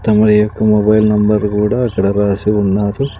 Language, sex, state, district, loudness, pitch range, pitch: Telugu, male, Andhra Pradesh, Sri Satya Sai, -13 LUFS, 100-110 Hz, 105 Hz